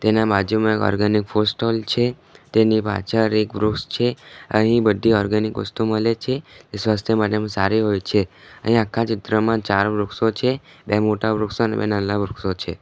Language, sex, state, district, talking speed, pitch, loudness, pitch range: Gujarati, male, Gujarat, Valsad, 185 wpm, 110 Hz, -20 LUFS, 105-115 Hz